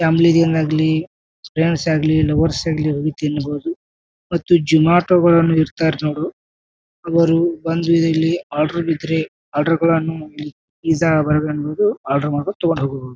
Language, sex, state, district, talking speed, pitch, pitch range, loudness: Kannada, male, Karnataka, Bijapur, 130 wpm, 160 Hz, 150-165 Hz, -17 LUFS